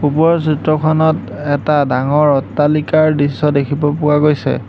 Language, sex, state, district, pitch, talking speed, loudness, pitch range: Assamese, male, Assam, Hailakandi, 150 Hz, 115 wpm, -14 LUFS, 145-155 Hz